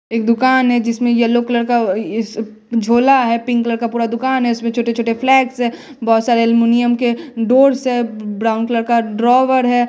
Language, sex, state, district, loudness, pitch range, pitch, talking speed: Hindi, female, Bihar, West Champaran, -15 LUFS, 230-245 Hz, 235 Hz, 190 wpm